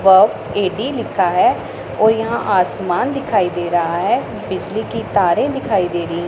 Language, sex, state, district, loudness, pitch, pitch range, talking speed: Hindi, female, Punjab, Pathankot, -17 LUFS, 180 Hz, 175-220 Hz, 155 wpm